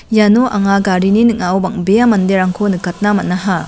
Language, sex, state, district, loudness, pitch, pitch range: Garo, female, Meghalaya, West Garo Hills, -13 LUFS, 200 Hz, 185-210 Hz